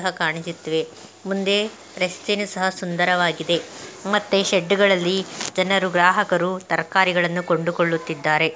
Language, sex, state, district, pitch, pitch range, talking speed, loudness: Kannada, female, Karnataka, Gulbarga, 180 Hz, 170-190 Hz, 85 wpm, -21 LUFS